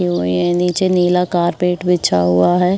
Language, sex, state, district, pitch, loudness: Hindi, female, Uttar Pradesh, Jyotiba Phule Nagar, 175 Hz, -15 LUFS